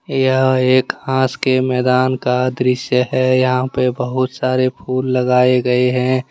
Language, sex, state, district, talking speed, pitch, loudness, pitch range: Hindi, male, Jharkhand, Deoghar, 150 wpm, 130 Hz, -16 LUFS, 125-130 Hz